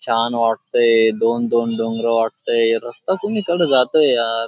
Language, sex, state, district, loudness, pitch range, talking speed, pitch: Marathi, male, Maharashtra, Dhule, -17 LUFS, 115-120 Hz, 120 wpm, 115 Hz